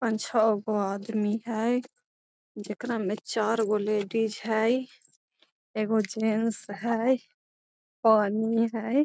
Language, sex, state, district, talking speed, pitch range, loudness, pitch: Magahi, female, Bihar, Gaya, 100 wpm, 215-230 Hz, -27 LUFS, 220 Hz